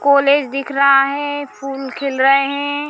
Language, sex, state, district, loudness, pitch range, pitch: Hindi, female, Bihar, Bhagalpur, -16 LUFS, 275-285 Hz, 275 Hz